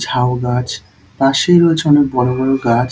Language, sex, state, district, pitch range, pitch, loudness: Bengali, male, West Bengal, Dakshin Dinajpur, 125-140 Hz, 125 Hz, -14 LUFS